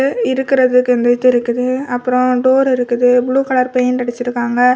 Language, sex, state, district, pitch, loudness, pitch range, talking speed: Tamil, female, Tamil Nadu, Kanyakumari, 250 Hz, -14 LUFS, 245-255 Hz, 150 wpm